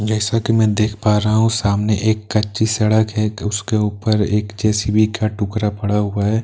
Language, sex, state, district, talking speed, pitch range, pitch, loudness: Hindi, male, Bihar, Katihar, 195 wpm, 105-110 Hz, 105 Hz, -18 LUFS